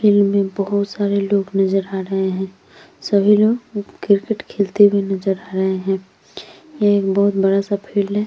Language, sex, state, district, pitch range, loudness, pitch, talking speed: Hindi, female, Uttar Pradesh, Jyotiba Phule Nagar, 195-205 Hz, -18 LUFS, 200 Hz, 165 wpm